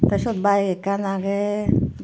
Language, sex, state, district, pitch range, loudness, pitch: Chakma, female, Tripura, Dhalai, 195-205 Hz, -22 LUFS, 200 Hz